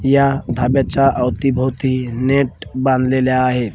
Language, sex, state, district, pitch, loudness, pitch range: Marathi, male, Maharashtra, Washim, 130 Hz, -16 LUFS, 125-135 Hz